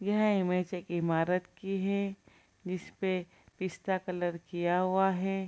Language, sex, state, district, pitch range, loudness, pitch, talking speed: Hindi, female, Bihar, Kishanganj, 180-195 Hz, -32 LUFS, 185 Hz, 155 wpm